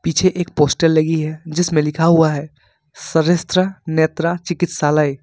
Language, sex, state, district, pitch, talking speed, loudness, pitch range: Hindi, male, Jharkhand, Ranchi, 160 Hz, 150 wpm, -17 LUFS, 150-175 Hz